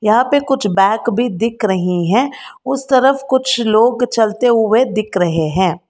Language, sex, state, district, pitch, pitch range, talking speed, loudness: Hindi, female, Karnataka, Bangalore, 230 Hz, 200-260 Hz, 175 wpm, -15 LUFS